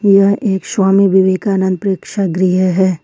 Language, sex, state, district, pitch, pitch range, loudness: Hindi, female, Jharkhand, Ranchi, 190 Hz, 185-195 Hz, -13 LUFS